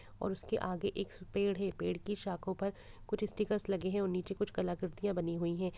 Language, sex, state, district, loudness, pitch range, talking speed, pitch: Hindi, female, Bihar, Gopalganj, -37 LUFS, 180-200 Hz, 215 wpm, 195 Hz